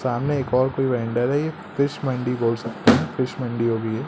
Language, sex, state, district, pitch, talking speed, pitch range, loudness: Hindi, male, Madhya Pradesh, Katni, 125 Hz, 235 wpm, 115-135 Hz, -22 LUFS